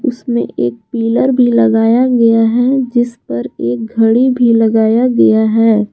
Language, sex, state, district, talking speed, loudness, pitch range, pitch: Hindi, female, Jharkhand, Garhwa, 150 wpm, -12 LUFS, 225-245 Hz, 230 Hz